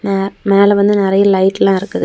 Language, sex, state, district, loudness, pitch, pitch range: Tamil, female, Tamil Nadu, Kanyakumari, -12 LUFS, 195 Hz, 195-200 Hz